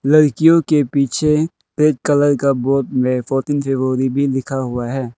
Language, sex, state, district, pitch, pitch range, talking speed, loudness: Hindi, male, Arunachal Pradesh, Lower Dibang Valley, 140 Hz, 130-150 Hz, 160 wpm, -16 LUFS